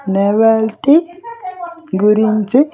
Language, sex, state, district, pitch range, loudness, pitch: Telugu, male, Andhra Pradesh, Sri Satya Sai, 215-340 Hz, -13 LUFS, 235 Hz